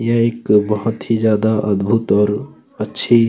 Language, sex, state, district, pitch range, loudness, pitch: Hindi, male, Chhattisgarh, Kabirdham, 105-115 Hz, -17 LUFS, 110 Hz